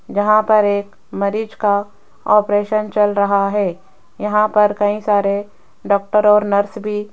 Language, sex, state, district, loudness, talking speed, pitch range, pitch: Hindi, female, Rajasthan, Jaipur, -16 LUFS, 150 wpm, 200-210 Hz, 205 Hz